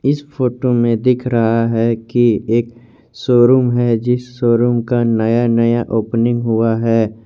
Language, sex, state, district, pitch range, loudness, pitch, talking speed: Hindi, male, Jharkhand, Garhwa, 115-120 Hz, -15 LUFS, 120 Hz, 150 wpm